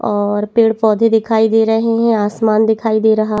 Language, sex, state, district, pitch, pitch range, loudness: Hindi, female, Chhattisgarh, Bastar, 220 Hz, 215-225 Hz, -14 LUFS